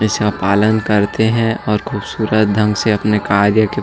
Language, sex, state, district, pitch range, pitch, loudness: Hindi, male, Chhattisgarh, Jashpur, 105-110 Hz, 105 Hz, -15 LUFS